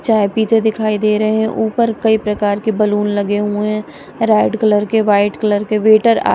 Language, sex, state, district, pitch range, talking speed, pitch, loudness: Hindi, female, Punjab, Kapurthala, 210-220 Hz, 210 wpm, 215 Hz, -15 LUFS